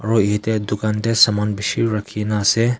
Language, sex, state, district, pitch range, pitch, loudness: Nagamese, male, Nagaland, Kohima, 105-115 Hz, 105 Hz, -18 LUFS